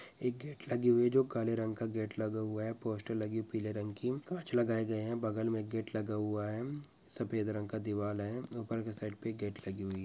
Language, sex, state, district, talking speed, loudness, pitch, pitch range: Hindi, male, West Bengal, Malda, 245 wpm, -37 LUFS, 110 Hz, 105-120 Hz